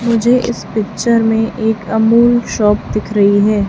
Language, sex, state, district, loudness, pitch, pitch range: Hindi, female, Chhattisgarh, Raipur, -13 LUFS, 220 Hz, 210-235 Hz